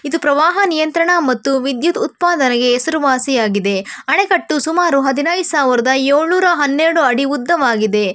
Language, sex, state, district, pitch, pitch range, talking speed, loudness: Kannada, female, Karnataka, Bangalore, 290 Hz, 260-340 Hz, 120 wpm, -14 LUFS